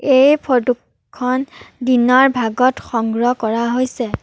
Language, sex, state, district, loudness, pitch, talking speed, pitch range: Assamese, female, Assam, Sonitpur, -16 LUFS, 250 Hz, 100 wpm, 240-260 Hz